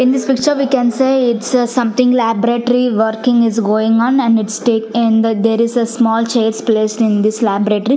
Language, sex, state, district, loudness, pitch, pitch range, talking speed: English, female, Punjab, Fazilka, -14 LUFS, 230 Hz, 220-250 Hz, 210 wpm